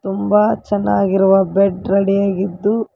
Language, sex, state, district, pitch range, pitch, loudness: Kannada, female, Karnataka, Koppal, 195-205 Hz, 195 Hz, -16 LUFS